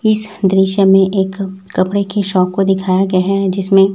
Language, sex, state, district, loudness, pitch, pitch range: Hindi, male, Chhattisgarh, Raipur, -14 LUFS, 195 Hz, 190-195 Hz